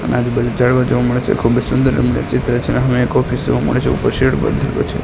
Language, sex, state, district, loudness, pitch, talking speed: Gujarati, male, Gujarat, Gandhinagar, -15 LUFS, 125 Hz, 240 wpm